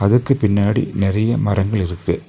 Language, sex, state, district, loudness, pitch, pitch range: Tamil, male, Tamil Nadu, Nilgiris, -18 LUFS, 100 Hz, 100-115 Hz